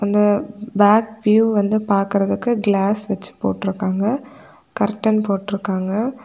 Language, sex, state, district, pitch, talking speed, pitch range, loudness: Tamil, female, Tamil Nadu, Kanyakumari, 205 Hz, 95 wpm, 200-220 Hz, -19 LUFS